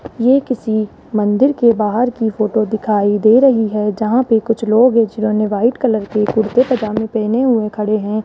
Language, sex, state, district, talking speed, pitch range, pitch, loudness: Hindi, female, Rajasthan, Jaipur, 180 wpm, 215-240 Hz, 220 Hz, -15 LUFS